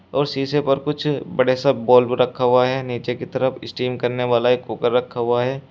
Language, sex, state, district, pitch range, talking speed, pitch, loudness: Hindi, male, Uttar Pradesh, Shamli, 125-135 Hz, 220 wpm, 125 Hz, -20 LUFS